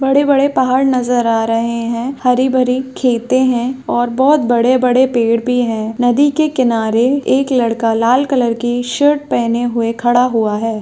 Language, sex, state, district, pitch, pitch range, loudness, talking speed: Hindi, female, Bihar, Madhepura, 245 Hz, 235-260 Hz, -14 LUFS, 160 wpm